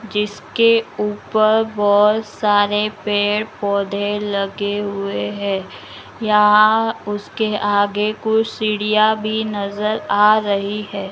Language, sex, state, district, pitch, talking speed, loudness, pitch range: Magahi, female, Bihar, Gaya, 210 Hz, 95 wpm, -18 LUFS, 205-215 Hz